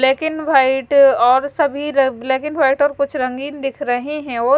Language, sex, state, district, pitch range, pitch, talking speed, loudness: Hindi, male, Punjab, Fazilka, 265-290 Hz, 275 Hz, 210 wpm, -16 LUFS